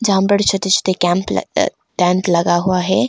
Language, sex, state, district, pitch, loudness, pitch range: Hindi, female, Arunachal Pradesh, Longding, 185 Hz, -16 LUFS, 180-195 Hz